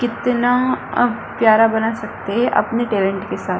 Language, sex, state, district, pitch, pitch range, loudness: Hindi, female, Bihar, Kishanganj, 225 Hz, 215-245 Hz, -18 LUFS